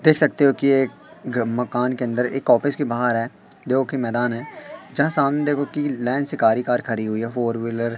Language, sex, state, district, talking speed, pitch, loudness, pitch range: Hindi, male, Madhya Pradesh, Katni, 220 wpm, 125 Hz, -21 LUFS, 120-145 Hz